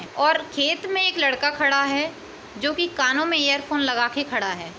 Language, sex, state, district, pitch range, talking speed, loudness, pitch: Hindi, female, Uttar Pradesh, Etah, 275-320 Hz, 200 wpm, -21 LUFS, 290 Hz